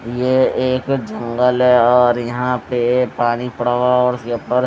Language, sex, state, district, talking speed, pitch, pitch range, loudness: Hindi, male, Odisha, Nuapada, 155 wpm, 125 Hz, 120-125 Hz, -16 LUFS